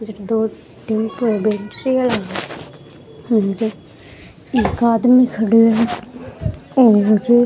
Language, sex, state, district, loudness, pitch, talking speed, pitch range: Rajasthani, female, Rajasthan, Churu, -17 LUFS, 220 Hz, 110 wpm, 205-235 Hz